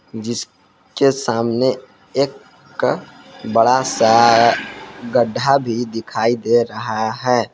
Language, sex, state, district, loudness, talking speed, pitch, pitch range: Hindi, male, Jharkhand, Palamu, -17 LUFS, 95 wpm, 115 Hz, 110-125 Hz